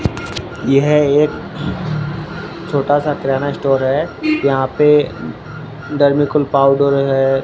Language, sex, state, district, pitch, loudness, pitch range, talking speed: Hindi, male, Rajasthan, Bikaner, 145 Hz, -15 LUFS, 135-150 Hz, 105 wpm